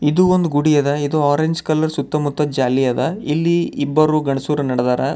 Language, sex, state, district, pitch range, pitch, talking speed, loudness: Kannada, male, Karnataka, Bidar, 140-155 Hz, 150 Hz, 165 wpm, -17 LUFS